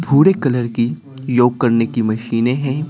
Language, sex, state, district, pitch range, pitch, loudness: Hindi, male, Bihar, Patna, 115-135 Hz, 125 Hz, -16 LUFS